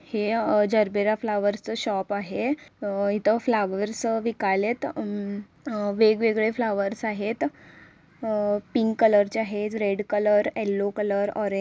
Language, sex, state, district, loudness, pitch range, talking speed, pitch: Marathi, female, Karnataka, Belgaum, -25 LUFS, 205-225 Hz, 125 wpm, 210 Hz